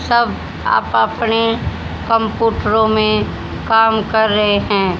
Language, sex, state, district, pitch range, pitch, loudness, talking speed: Hindi, female, Haryana, Jhajjar, 215-225 Hz, 220 Hz, -15 LUFS, 110 wpm